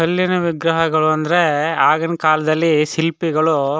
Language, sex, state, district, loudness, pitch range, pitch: Kannada, male, Karnataka, Chamarajanagar, -16 LUFS, 155-165 Hz, 160 Hz